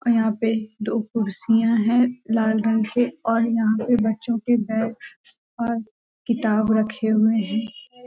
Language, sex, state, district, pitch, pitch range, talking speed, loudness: Hindi, female, Jharkhand, Sahebganj, 225 Hz, 220-235 Hz, 150 wpm, -22 LUFS